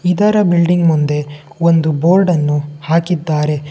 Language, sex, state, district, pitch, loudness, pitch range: Kannada, male, Karnataka, Bangalore, 165 Hz, -14 LUFS, 150-175 Hz